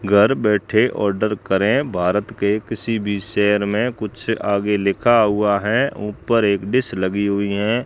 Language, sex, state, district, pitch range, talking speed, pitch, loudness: Hindi, male, Rajasthan, Bikaner, 100-110 Hz, 160 wpm, 105 Hz, -19 LUFS